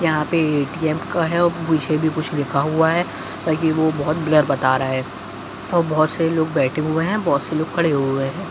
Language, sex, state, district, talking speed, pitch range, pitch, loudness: Hindi, male, Bihar, Jahanabad, 235 wpm, 140-165 Hz, 155 Hz, -20 LUFS